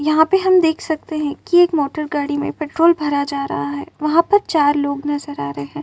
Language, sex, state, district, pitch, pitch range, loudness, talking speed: Hindi, female, Uttar Pradesh, Muzaffarnagar, 300 Hz, 285-325 Hz, -18 LUFS, 245 wpm